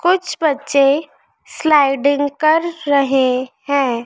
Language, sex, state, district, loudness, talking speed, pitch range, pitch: Hindi, female, Madhya Pradesh, Dhar, -16 LUFS, 90 wpm, 275-310 Hz, 285 Hz